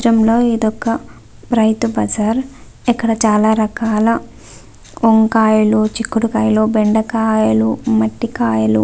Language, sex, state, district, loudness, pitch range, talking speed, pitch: Telugu, female, Andhra Pradesh, Visakhapatnam, -15 LUFS, 215-230 Hz, 100 wpm, 220 Hz